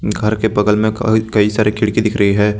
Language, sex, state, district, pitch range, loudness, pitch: Hindi, male, Jharkhand, Garhwa, 105-110 Hz, -15 LUFS, 105 Hz